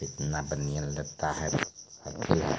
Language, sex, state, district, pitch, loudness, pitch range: Maithili, male, Bihar, Supaul, 75 Hz, -32 LUFS, 70-75 Hz